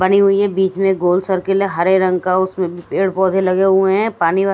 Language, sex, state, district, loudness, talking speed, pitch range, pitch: Hindi, female, Chandigarh, Chandigarh, -16 LUFS, 250 wpm, 185-195 Hz, 190 Hz